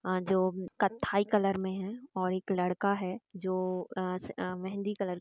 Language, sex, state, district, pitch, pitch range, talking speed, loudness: Hindi, female, Bihar, East Champaran, 190 Hz, 185-200 Hz, 175 wpm, -33 LUFS